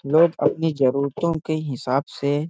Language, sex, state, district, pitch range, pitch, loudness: Hindi, male, Uttar Pradesh, Hamirpur, 140-160 Hz, 145 Hz, -22 LUFS